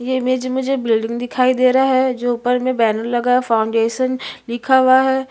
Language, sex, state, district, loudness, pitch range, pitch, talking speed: Hindi, female, Chhattisgarh, Sukma, -17 LUFS, 240-260 Hz, 255 Hz, 215 wpm